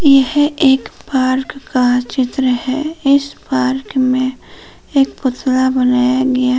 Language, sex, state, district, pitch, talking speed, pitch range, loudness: Hindi, female, Jharkhand, Palamu, 260 Hz, 125 wpm, 255-275 Hz, -15 LUFS